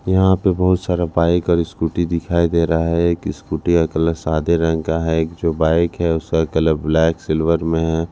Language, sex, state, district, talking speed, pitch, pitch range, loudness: Hindi, male, Punjab, Kapurthala, 215 wpm, 85 Hz, 80-85 Hz, -18 LUFS